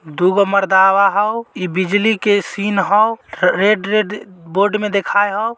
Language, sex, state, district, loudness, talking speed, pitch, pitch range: Magahi, male, Bihar, Samastipur, -15 LUFS, 150 wpm, 205 Hz, 195-210 Hz